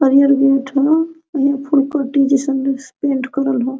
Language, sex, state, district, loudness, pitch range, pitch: Hindi, female, Jharkhand, Sahebganj, -16 LUFS, 275-280 Hz, 275 Hz